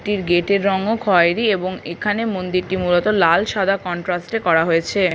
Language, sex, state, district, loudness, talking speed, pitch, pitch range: Bengali, female, West Bengal, Paschim Medinipur, -18 LUFS, 210 wpm, 185 Hz, 175-205 Hz